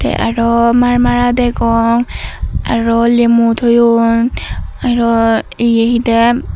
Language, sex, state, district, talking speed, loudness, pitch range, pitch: Chakma, female, Tripura, Dhalai, 90 wpm, -12 LUFS, 230-240 Hz, 235 Hz